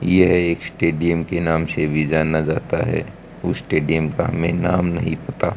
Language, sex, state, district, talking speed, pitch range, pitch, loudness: Hindi, male, Haryana, Rohtak, 185 wpm, 80-85 Hz, 85 Hz, -20 LUFS